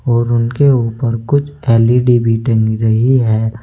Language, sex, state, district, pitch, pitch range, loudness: Hindi, male, Uttar Pradesh, Saharanpur, 120 Hz, 115-125 Hz, -13 LUFS